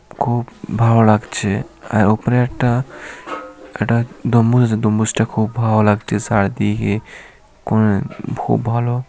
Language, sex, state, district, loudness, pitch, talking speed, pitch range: Bengali, male, West Bengal, North 24 Parganas, -17 LUFS, 110 Hz, 110 wpm, 105-120 Hz